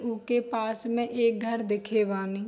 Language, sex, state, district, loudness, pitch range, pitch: Hindi, female, Bihar, Saharsa, -28 LUFS, 210-235 Hz, 225 Hz